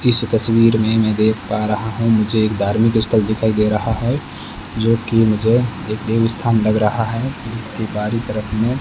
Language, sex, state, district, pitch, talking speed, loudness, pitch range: Hindi, male, Rajasthan, Bikaner, 110 Hz, 205 wpm, -17 LUFS, 110-115 Hz